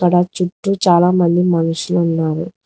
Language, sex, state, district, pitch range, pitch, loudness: Telugu, female, Telangana, Hyderabad, 165-180 Hz, 175 Hz, -15 LUFS